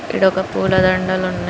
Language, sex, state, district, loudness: Telugu, female, Andhra Pradesh, Srikakulam, -17 LUFS